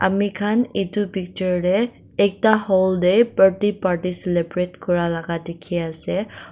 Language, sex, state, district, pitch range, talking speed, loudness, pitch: Nagamese, female, Nagaland, Dimapur, 175-205 Hz, 110 wpm, -20 LUFS, 185 Hz